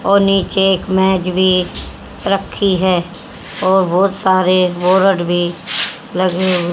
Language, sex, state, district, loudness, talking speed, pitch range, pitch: Hindi, female, Haryana, Rohtak, -15 LUFS, 125 wpm, 180-190 Hz, 185 Hz